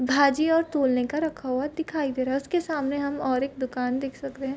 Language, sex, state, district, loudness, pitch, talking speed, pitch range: Hindi, female, Bihar, Vaishali, -26 LUFS, 275 Hz, 250 wpm, 260-300 Hz